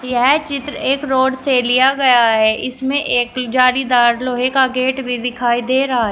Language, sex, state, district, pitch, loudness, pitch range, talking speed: Hindi, female, Uttar Pradesh, Shamli, 255 Hz, -15 LUFS, 245-265 Hz, 195 wpm